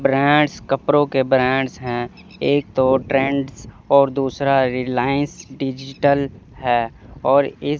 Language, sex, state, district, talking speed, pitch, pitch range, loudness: Hindi, male, Chandigarh, Chandigarh, 115 wpm, 135 Hz, 125-140 Hz, -19 LUFS